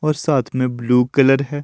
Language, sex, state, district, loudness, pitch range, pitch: Hindi, male, Himachal Pradesh, Shimla, -17 LUFS, 125-145 Hz, 135 Hz